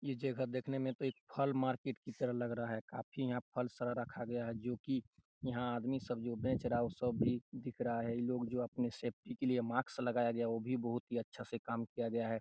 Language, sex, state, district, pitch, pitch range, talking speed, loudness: Hindi, male, Chhattisgarh, Raigarh, 120 Hz, 120-130 Hz, 270 wpm, -40 LUFS